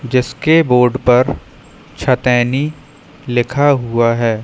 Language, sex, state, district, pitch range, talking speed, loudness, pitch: Hindi, female, Madhya Pradesh, Katni, 120-140 Hz, 95 wpm, -14 LUFS, 125 Hz